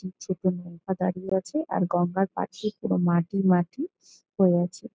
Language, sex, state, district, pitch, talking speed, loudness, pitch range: Bengali, female, West Bengal, Jalpaiguri, 185 Hz, 145 wpm, -26 LUFS, 180-195 Hz